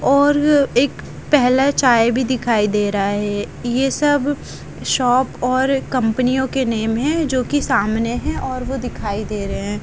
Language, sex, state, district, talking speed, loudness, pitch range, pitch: Hindi, female, Haryana, Jhajjar, 155 wpm, -18 LUFS, 225-270 Hz, 255 Hz